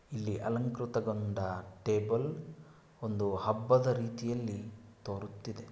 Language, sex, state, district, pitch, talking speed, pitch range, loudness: Kannada, male, Karnataka, Shimoga, 115 Hz, 75 wpm, 105-120 Hz, -35 LUFS